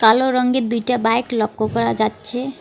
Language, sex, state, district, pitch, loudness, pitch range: Bengali, female, West Bengal, Alipurduar, 230 Hz, -19 LUFS, 215-250 Hz